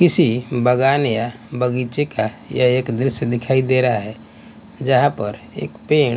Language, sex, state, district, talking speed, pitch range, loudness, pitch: Hindi, male, Bihar, West Champaran, 155 wpm, 120-135 Hz, -18 LUFS, 125 Hz